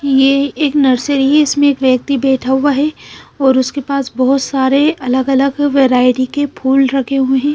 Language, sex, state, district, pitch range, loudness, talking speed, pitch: Hindi, female, Punjab, Fazilka, 265-285 Hz, -13 LUFS, 185 wpm, 270 Hz